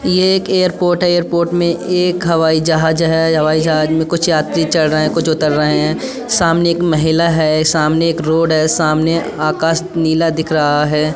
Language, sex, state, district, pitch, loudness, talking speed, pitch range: Hindi, female, Uttar Pradesh, Budaun, 160 Hz, -14 LUFS, 195 wpm, 155-170 Hz